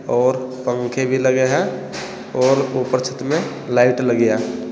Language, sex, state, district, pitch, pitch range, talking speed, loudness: Hindi, male, Uttar Pradesh, Saharanpur, 130 Hz, 125-130 Hz, 150 wpm, -19 LUFS